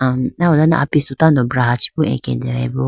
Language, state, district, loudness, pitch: Idu Mishmi, Arunachal Pradesh, Lower Dibang Valley, -16 LUFS, 125 Hz